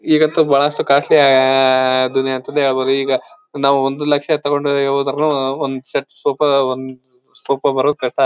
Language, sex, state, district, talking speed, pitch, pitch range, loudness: Kannada, male, Karnataka, Bellary, 140 wpm, 140 Hz, 130-145 Hz, -15 LUFS